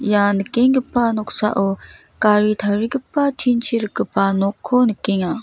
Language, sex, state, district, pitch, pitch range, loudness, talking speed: Garo, female, Meghalaya, West Garo Hills, 215 Hz, 205-245 Hz, -18 LUFS, 100 wpm